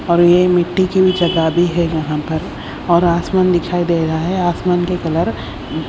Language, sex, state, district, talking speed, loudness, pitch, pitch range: Hindi, female, Odisha, Khordha, 195 wpm, -15 LUFS, 175 Hz, 160-180 Hz